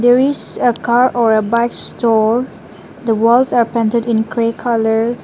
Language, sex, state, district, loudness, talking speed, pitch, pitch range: English, female, Nagaland, Dimapur, -14 LUFS, 170 wpm, 235 Hz, 225-245 Hz